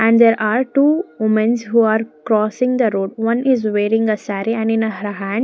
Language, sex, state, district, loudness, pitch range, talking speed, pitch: English, female, Maharashtra, Gondia, -17 LUFS, 215-235 Hz, 220 wpm, 225 Hz